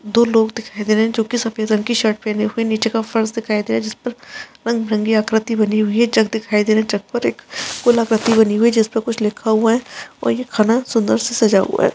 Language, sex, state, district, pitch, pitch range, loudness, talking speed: Hindi, female, Uttarakhand, Tehri Garhwal, 225 Hz, 215-235 Hz, -17 LUFS, 275 wpm